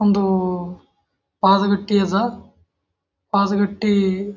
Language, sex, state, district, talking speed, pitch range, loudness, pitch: Kannada, male, Karnataka, Bijapur, 70 wpm, 180-200 Hz, -19 LUFS, 195 Hz